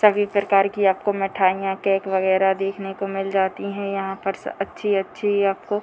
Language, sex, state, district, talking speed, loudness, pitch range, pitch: Hindi, female, Bihar, Muzaffarpur, 175 wpm, -22 LUFS, 195-200 Hz, 195 Hz